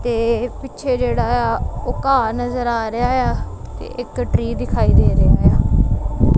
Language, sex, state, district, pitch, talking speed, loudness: Punjabi, female, Punjab, Kapurthala, 220 Hz, 170 wpm, -18 LUFS